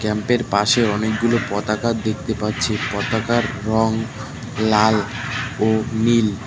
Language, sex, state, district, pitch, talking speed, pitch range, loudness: Bengali, male, West Bengal, Cooch Behar, 110 Hz, 100 wpm, 105-115 Hz, -20 LUFS